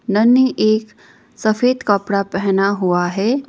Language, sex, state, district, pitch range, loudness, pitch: Hindi, female, Sikkim, Gangtok, 195-235 Hz, -16 LUFS, 210 Hz